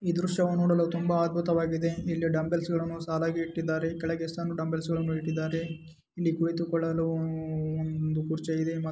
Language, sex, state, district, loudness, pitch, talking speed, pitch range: Kannada, male, Karnataka, Dharwad, -29 LUFS, 165 Hz, 135 wpm, 160-170 Hz